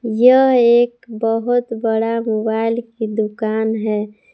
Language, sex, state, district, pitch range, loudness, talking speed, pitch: Hindi, female, Jharkhand, Palamu, 220-235 Hz, -17 LUFS, 110 wpm, 225 Hz